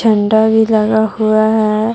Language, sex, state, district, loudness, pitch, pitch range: Hindi, female, Jharkhand, Deoghar, -12 LUFS, 220 Hz, 215-220 Hz